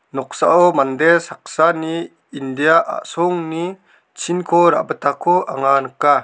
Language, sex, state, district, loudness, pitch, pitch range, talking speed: Garo, male, Meghalaya, South Garo Hills, -17 LUFS, 170 Hz, 145-175 Hz, 85 wpm